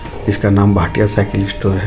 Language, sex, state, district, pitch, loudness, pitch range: Hindi, male, Jharkhand, Ranchi, 100 Hz, -15 LUFS, 100-105 Hz